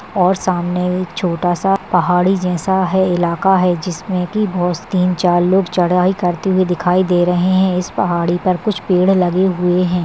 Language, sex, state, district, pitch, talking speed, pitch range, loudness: Hindi, female, Maharashtra, Solapur, 180 Hz, 185 wpm, 175-185 Hz, -15 LUFS